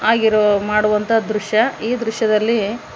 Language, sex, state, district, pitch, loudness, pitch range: Kannada, female, Karnataka, Koppal, 220 Hz, -17 LUFS, 210-225 Hz